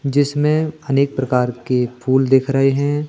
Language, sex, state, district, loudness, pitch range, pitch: Hindi, male, Madhya Pradesh, Katni, -17 LUFS, 130-145 Hz, 135 Hz